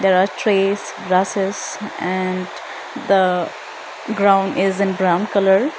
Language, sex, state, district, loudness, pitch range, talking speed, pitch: English, female, Arunachal Pradesh, Lower Dibang Valley, -18 LUFS, 185-200 Hz, 115 wpm, 195 Hz